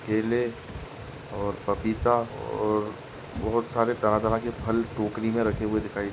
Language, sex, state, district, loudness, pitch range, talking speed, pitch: Hindi, male, Goa, North and South Goa, -27 LUFS, 105-115 Hz, 145 wpm, 110 Hz